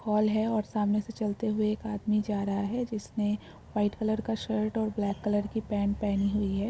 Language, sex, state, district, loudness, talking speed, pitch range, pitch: Hindi, female, Bihar, Darbhanga, -30 LUFS, 225 wpm, 205-220 Hz, 210 Hz